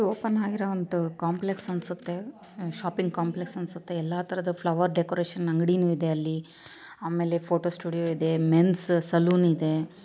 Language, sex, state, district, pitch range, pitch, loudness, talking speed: Kannada, female, Karnataka, Chamarajanagar, 170-180 Hz, 175 Hz, -27 LUFS, 145 wpm